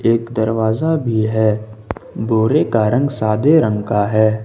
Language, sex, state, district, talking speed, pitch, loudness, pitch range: Hindi, male, Jharkhand, Ranchi, 150 wpm, 110 Hz, -16 LUFS, 110-115 Hz